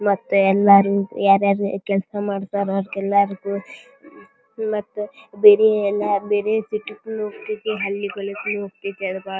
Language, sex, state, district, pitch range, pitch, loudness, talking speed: Kannada, female, Karnataka, Dharwad, 195-210 Hz, 200 Hz, -20 LUFS, 55 wpm